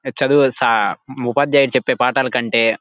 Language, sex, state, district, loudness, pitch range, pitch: Telugu, male, Andhra Pradesh, Guntur, -16 LUFS, 125-135 Hz, 130 Hz